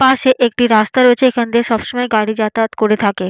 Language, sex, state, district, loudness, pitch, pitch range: Bengali, female, West Bengal, Jalpaiguri, -14 LUFS, 235 Hz, 215-245 Hz